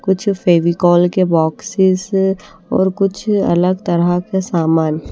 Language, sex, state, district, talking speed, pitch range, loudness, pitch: Hindi, female, Odisha, Nuapada, 115 wpm, 175-190 Hz, -15 LUFS, 185 Hz